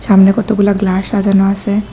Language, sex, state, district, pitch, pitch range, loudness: Bengali, female, Tripura, West Tripura, 200 Hz, 195-205 Hz, -12 LUFS